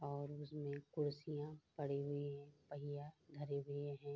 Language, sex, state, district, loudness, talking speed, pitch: Hindi, female, Bihar, Bhagalpur, -47 LUFS, 145 wpm, 145 Hz